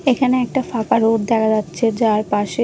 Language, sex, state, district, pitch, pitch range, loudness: Bengali, female, Odisha, Nuapada, 225 Hz, 215-250 Hz, -18 LUFS